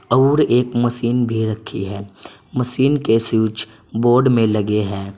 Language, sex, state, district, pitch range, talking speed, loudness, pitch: Hindi, male, Uttar Pradesh, Saharanpur, 105-125 Hz, 150 wpm, -18 LUFS, 115 Hz